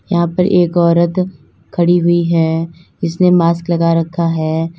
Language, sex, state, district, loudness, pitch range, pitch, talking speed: Hindi, female, Uttar Pradesh, Lalitpur, -14 LUFS, 165-175 Hz, 170 Hz, 150 wpm